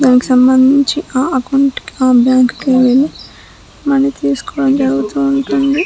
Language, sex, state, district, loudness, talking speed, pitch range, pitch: Telugu, male, Andhra Pradesh, Guntur, -12 LUFS, 135 wpm, 230-275 Hz, 255 Hz